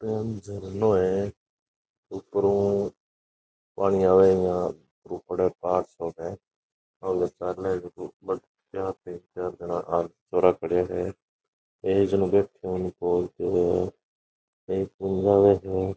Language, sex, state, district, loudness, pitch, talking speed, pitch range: Rajasthani, male, Rajasthan, Nagaur, -26 LUFS, 95 Hz, 65 wpm, 90-100 Hz